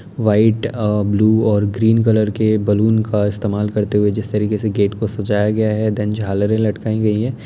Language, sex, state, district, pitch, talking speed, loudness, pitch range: Hindi, male, Uttar Pradesh, Etah, 105 Hz, 200 wpm, -17 LUFS, 105-110 Hz